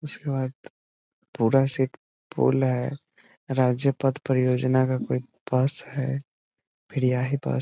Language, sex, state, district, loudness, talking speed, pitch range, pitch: Hindi, male, Bihar, Muzaffarpur, -25 LUFS, 125 wpm, 125-135 Hz, 130 Hz